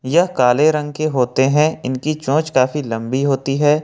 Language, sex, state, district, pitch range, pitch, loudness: Hindi, male, Jharkhand, Ranchi, 130-155 Hz, 145 Hz, -17 LUFS